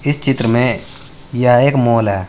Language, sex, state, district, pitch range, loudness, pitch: Hindi, male, Uttar Pradesh, Saharanpur, 115-140 Hz, -14 LUFS, 125 Hz